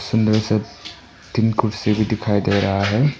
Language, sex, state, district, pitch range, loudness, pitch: Hindi, male, Arunachal Pradesh, Papum Pare, 100-110 Hz, -19 LUFS, 105 Hz